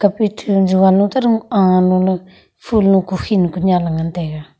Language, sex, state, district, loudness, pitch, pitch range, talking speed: Wancho, female, Arunachal Pradesh, Longding, -15 LUFS, 190 Hz, 185-205 Hz, 180 wpm